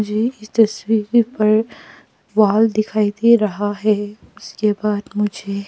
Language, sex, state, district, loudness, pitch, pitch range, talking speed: Hindi, female, Arunachal Pradesh, Papum Pare, -18 LUFS, 215 Hz, 210-220 Hz, 125 wpm